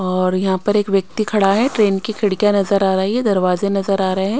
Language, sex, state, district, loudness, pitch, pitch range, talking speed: Hindi, female, Maharashtra, Mumbai Suburban, -17 LUFS, 195 Hz, 190-210 Hz, 260 wpm